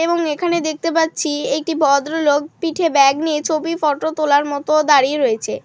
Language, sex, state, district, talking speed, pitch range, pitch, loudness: Bengali, female, West Bengal, Malda, 170 wpm, 290-330 Hz, 310 Hz, -17 LUFS